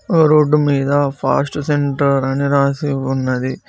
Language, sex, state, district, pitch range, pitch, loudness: Telugu, male, Telangana, Mahabubabad, 135-145 Hz, 140 Hz, -16 LUFS